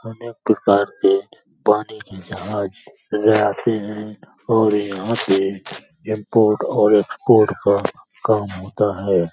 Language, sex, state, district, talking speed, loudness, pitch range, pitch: Hindi, male, Uttar Pradesh, Hamirpur, 120 wpm, -19 LUFS, 100-110 Hz, 105 Hz